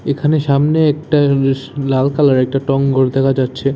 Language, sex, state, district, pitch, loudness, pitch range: Bengali, male, Tripura, West Tripura, 135 Hz, -14 LUFS, 135-145 Hz